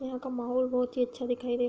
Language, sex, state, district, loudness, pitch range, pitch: Hindi, female, Uttar Pradesh, Hamirpur, -31 LUFS, 245-255 Hz, 250 Hz